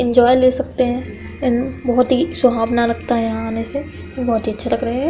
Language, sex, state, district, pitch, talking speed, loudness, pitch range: Hindi, female, Bihar, Samastipur, 245 Hz, 210 wpm, -18 LUFS, 230-255 Hz